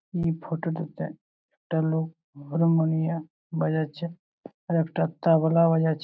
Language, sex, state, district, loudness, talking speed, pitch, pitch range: Bengali, male, West Bengal, Malda, -26 LUFS, 110 wpm, 165 Hz, 160-165 Hz